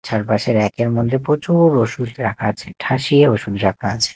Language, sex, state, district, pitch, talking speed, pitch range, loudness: Bengali, male, Odisha, Nuapada, 115 Hz, 175 wpm, 105-135 Hz, -17 LUFS